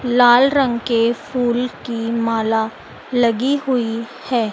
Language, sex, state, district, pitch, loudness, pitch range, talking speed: Hindi, female, Madhya Pradesh, Dhar, 240 Hz, -18 LUFS, 230-250 Hz, 120 wpm